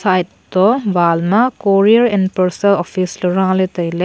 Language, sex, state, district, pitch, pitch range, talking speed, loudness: Wancho, female, Arunachal Pradesh, Longding, 185 Hz, 180-200 Hz, 150 wpm, -14 LUFS